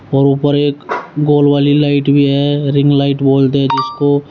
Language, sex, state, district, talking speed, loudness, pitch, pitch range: Hindi, male, Uttar Pradesh, Shamli, 180 wpm, -12 LUFS, 140 Hz, 140-145 Hz